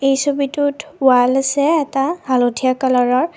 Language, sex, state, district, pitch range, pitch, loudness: Assamese, female, Assam, Kamrup Metropolitan, 255-285 Hz, 270 Hz, -16 LUFS